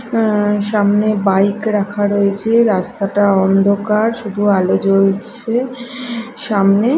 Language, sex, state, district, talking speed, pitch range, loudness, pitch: Bengali, female, Odisha, Khordha, 95 wpm, 200-230 Hz, -15 LUFS, 205 Hz